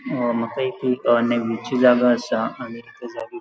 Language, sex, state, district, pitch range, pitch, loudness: Konkani, male, Goa, North and South Goa, 120-130 Hz, 120 Hz, -20 LUFS